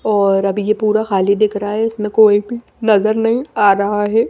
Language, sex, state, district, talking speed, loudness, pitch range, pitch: Hindi, female, Maharashtra, Mumbai Suburban, 225 wpm, -15 LUFS, 205-220 Hz, 210 Hz